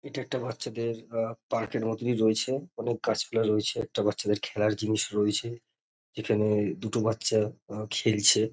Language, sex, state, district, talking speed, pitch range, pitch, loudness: Bengali, male, West Bengal, North 24 Parganas, 140 wpm, 105-115 Hz, 110 Hz, -28 LUFS